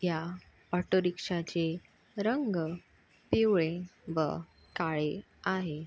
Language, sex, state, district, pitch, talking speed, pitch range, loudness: Marathi, female, Maharashtra, Sindhudurg, 175 Hz, 80 wpm, 160-185 Hz, -33 LUFS